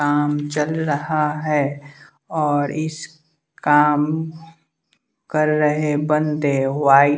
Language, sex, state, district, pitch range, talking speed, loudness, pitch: Hindi, male, Bihar, West Champaran, 145-155 Hz, 90 wpm, -19 LUFS, 150 Hz